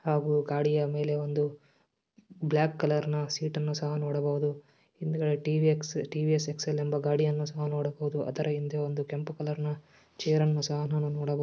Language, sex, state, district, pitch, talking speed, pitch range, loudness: Kannada, male, Karnataka, Dharwad, 150 Hz, 125 wpm, 145-150 Hz, -30 LUFS